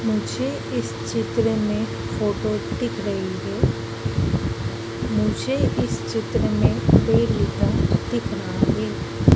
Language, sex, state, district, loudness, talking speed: Hindi, female, Madhya Pradesh, Dhar, -23 LUFS, 105 wpm